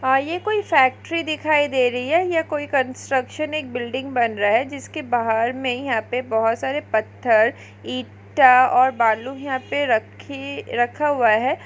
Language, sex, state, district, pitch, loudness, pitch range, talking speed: Hindi, female, Maharashtra, Aurangabad, 260 Hz, -20 LUFS, 235-290 Hz, 165 wpm